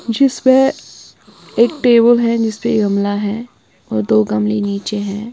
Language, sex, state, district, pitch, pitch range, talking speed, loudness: Hindi, female, Punjab, Kapurthala, 215 Hz, 200-235 Hz, 145 wpm, -15 LUFS